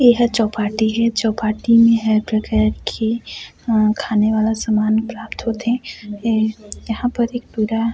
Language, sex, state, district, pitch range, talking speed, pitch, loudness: Chhattisgarhi, female, Chhattisgarh, Sarguja, 215-230 Hz, 135 wpm, 225 Hz, -18 LUFS